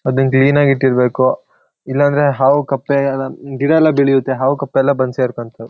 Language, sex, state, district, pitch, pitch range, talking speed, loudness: Kannada, male, Karnataka, Shimoga, 135 Hz, 130-140 Hz, 145 wpm, -14 LUFS